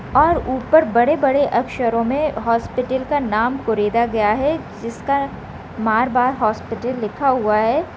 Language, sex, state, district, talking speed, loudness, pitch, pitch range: Hindi, female, Rajasthan, Nagaur, 135 wpm, -18 LUFS, 245 Hz, 225-275 Hz